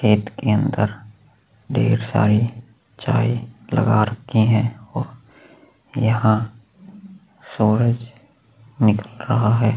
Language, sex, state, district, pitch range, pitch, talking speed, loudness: Hindi, male, Chhattisgarh, Sukma, 110-130 Hz, 115 Hz, 90 wpm, -20 LUFS